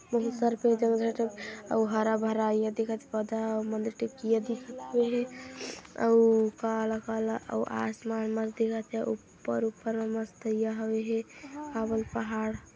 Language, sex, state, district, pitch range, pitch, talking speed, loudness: Hindi, female, Chhattisgarh, Kabirdham, 220-230 Hz, 225 Hz, 180 wpm, -30 LUFS